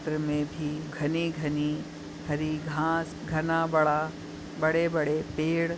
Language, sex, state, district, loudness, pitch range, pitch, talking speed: Hindi, female, Maharashtra, Nagpur, -29 LUFS, 150-160 Hz, 155 Hz, 135 wpm